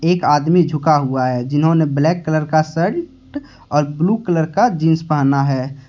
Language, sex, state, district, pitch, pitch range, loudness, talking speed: Hindi, male, Jharkhand, Deoghar, 155 Hz, 145-170 Hz, -16 LUFS, 175 wpm